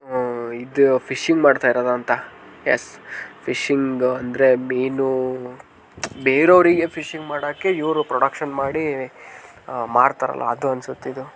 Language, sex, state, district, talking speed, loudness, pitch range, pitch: Kannada, male, Karnataka, Dharwad, 110 wpm, -20 LUFS, 125-150 Hz, 135 Hz